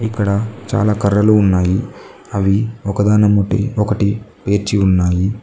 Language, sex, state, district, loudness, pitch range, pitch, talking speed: Telugu, male, Telangana, Mahabubabad, -16 LUFS, 100-105 Hz, 105 Hz, 100 wpm